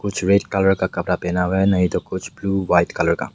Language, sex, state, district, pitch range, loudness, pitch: Hindi, male, Meghalaya, West Garo Hills, 90-95 Hz, -19 LUFS, 95 Hz